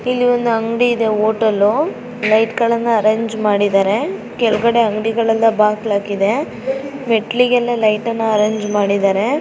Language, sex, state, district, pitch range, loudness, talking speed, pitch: Kannada, female, Karnataka, Raichur, 210-235 Hz, -16 LUFS, 120 wpm, 225 Hz